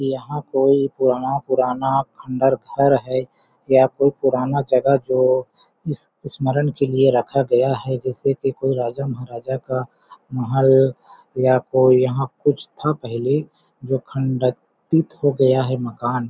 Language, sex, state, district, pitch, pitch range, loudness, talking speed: Hindi, male, Chhattisgarh, Balrampur, 130 Hz, 130-140 Hz, -19 LUFS, 145 wpm